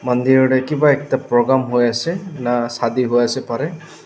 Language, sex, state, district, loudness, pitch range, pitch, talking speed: Nagamese, male, Nagaland, Dimapur, -17 LUFS, 120-145 Hz, 130 Hz, 150 wpm